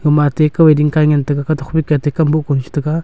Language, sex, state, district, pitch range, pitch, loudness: Wancho, male, Arunachal Pradesh, Longding, 145-155 Hz, 150 Hz, -14 LUFS